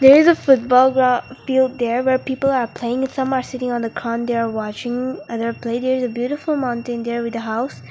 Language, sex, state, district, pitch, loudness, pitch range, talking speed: English, female, Mizoram, Aizawl, 245 Hz, -19 LUFS, 235-260 Hz, 220 wpm